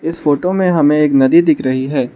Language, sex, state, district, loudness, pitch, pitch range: Hindi, male, Arunachal Pradesh, Lower Dibang Valley, -13 LUFS, 150 Hz, 135-165 Hz